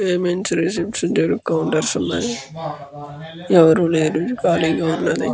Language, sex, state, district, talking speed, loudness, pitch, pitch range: Telugu, male, Andhra Pradesh, Guntur, 100 wpm, -18 LUFS, 165 Hz, 155-175 Hz